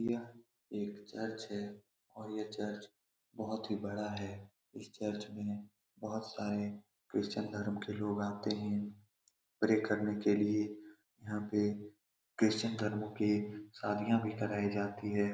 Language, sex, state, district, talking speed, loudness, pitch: Hindi, male, Bihar, Saran, 150 wpm, -38 LUFS, 105 Hz